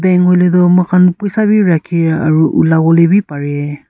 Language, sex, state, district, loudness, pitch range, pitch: Nagamese, female, Nagaland, Kohima, -11 LUFS, 160-180 Hz, 175 Hz